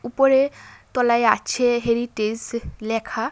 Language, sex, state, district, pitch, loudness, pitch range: Bengali, female, Tripura, West Tripura, 235 Hz, -21 LUFS, 225-250 Hz